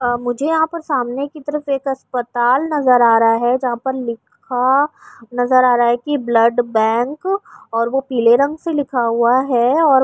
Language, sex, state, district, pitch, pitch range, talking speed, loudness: Urdu, female, Uttar Pradesh, Budaun, 255 Hz, 240-280 Hz, 190 wpm, -16 LUFS